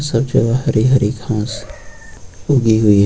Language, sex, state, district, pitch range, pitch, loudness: Hindi, male, Uttar Pradesh, Lucknow, 110-130 Hz, 115 Hz, -15 LUFS